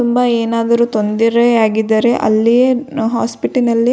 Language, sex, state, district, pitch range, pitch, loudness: Kannada, female, Karnataka, Belgaum, 225-240 Hz, 235 Hz, -14 LUFS